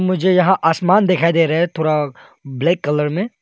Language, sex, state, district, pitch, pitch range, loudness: Hindi, male, Arunachal Pradesh, Longding, 170 Hz, 155-185 Hz, -16 LUFS